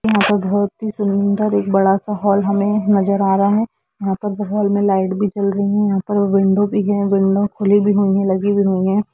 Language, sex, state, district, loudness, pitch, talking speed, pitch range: Hindi, female, Jharkhand, Jamtara, -17 LUFS, 200 Hz, 245 wpm, 195-205 Hz